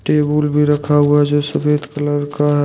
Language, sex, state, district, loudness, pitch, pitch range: Hindi, male, Jharkhand, Deoghar, -16 LUFS, 145 Hz, 145-150 Hz